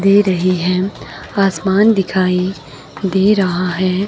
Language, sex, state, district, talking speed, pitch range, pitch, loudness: Hindi, female, Himachal Pradesh, Shimla, 120 wpm, 180-195 Hz, 190 Hz, -15 LUFS